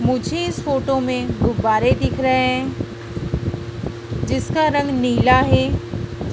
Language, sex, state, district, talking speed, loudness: Hindi, female, Madhya Pradesh, Dhar, 115 wpm, -19 LUFS